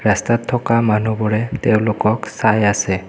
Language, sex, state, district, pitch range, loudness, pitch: Assamese, male, Assam, Kamrup Metropolitan, 105-115 Hz, -17 LUFS, 110 Hz